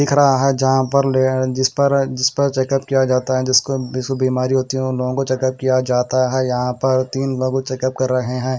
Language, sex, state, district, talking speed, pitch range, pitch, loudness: Hindi, male, Haryana, Rohtak, 250 wpm, 130-135 Hz, 130 Hz, -18 LUFS